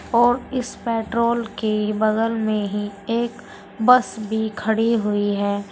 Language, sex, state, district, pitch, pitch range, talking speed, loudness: Hindi, female, Uttar Pradesh, Saharanpur, 220 Hz, 210-235 Hz, 135 wpm, -21 LUFS